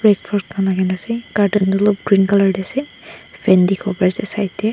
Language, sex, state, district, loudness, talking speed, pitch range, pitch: Nagamese, female, Nagaland, Dimapur, -17 LUFS, 240 wpm, 190-210 Hz, 200 Hz